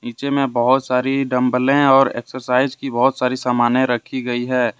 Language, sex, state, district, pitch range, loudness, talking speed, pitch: Hindi, male, Jharkhand, Deoghar, 125-135 Hz, -18 LUFS, 175 wpm, 130 Hz